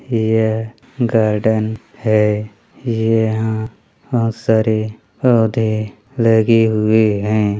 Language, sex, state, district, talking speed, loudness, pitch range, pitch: Chhattisgarhi, male, Chhattisgarh, Bilaspur, 80 wpm, -16 LUFS, 110-115 Hz, 110 Hz